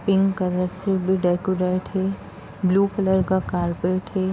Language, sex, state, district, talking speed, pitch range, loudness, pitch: Hindi, female, Bihar, Jamui, 150 wpm, 180-195 Hz, -22 LUFS, 190 Hz